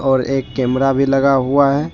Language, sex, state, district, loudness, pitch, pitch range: Hindi, male, Jharkhand, Deoghar, -15 LUFS, 135 Hz, 135-140 Hz